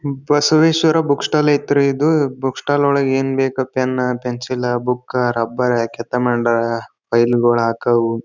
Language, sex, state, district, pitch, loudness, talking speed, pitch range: Kannada, male, Karnataka, Bijapur, 130 Hz, -17 LUFS, 115 wpm, 120-140 Hz